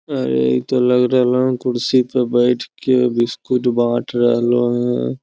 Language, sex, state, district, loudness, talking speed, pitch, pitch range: Magahi, male, Bihar, Lakhisarai, -17 LUFS, 160 wpm, 120 Hz, 120-125 Hz